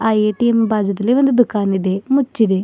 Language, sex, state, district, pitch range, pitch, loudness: Kannada, female, Karnataka, Bidar, 200-245 Hz, 220 Hz, -16 LUFS